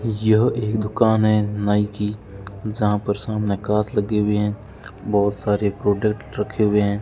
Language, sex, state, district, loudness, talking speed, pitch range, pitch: Hindi, male, Rajasthan, Bikaner, -21 LUFS, 160 wpm, 105-110 Hz, 105 Hz